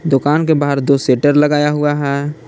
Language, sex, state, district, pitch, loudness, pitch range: Hindi, male, Jharkhand, Palamu, 145 Hz, -14 LUFS, 140-150 Hz